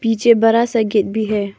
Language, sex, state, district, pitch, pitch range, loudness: Hindi, female, Arunachal Pradesh, Papum Pare, 225 Hz, 210-230 Hz, -15 LUFS